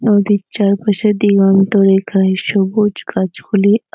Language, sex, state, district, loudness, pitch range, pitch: Bengali, female, West Bengal, North 24 Parganas, -14 LUFS, 195-210 Hz, 200 Hz